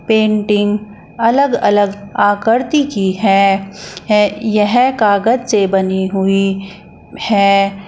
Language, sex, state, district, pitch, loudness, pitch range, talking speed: Hindi, female, Uttar Pradesh, Shamli, 205 Hz, -14 LUFS, 195-220 Hz, 100 wpm